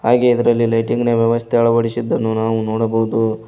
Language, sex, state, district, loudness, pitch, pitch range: Kannada, male, Karnataka, Koppal, -16 LUFS, 115 Hz, 115-120 Hz